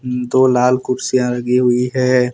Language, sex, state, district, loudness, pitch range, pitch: Hindi, male, Jharkhand, Deoghar, -15 LUFS, 125-130 Hz, 125 Hz